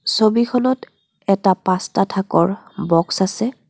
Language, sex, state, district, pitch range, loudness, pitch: Assamese, female, Assam, Kamrup Metropolitan, 190-230 Hz, -18 LUFS, 195 Hz